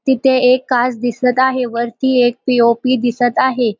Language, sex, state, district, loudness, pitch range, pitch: Marathi, female, Maharashtra, Dhule, -14 LUFS, 240-260 Hz, 250 Hz